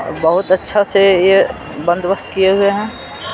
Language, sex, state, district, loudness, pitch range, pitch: Hindi, male, Bihar, Patna, -14 LUFS, 180-200 Hz, 195 Hz